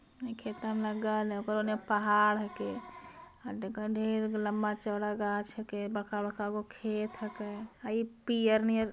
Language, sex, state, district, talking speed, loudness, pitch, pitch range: Magahi, female, Bihar, Jamui, 75 wpm, -33 LUFS, 215 Hz, 210-225 Hz